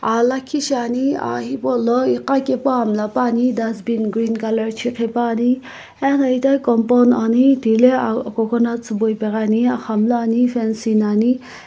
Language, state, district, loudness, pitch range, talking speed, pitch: Sumi, Nagaland, Kohima, -18 LUFS, 225-250 Hz, 135 wpm, 235 Hz